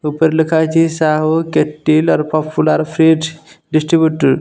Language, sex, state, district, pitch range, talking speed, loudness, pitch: Odia, male, Odisha, Nuapada, 155-160 Hz, 150 wpm, -14 LUFS, 160 Hz